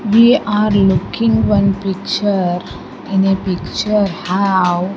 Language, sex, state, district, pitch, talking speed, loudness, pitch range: English, female, Andhra Pradesh, Sri Satya Sai, 195 Hz, 120 wpm, -15 LUFS, 185-210 Hz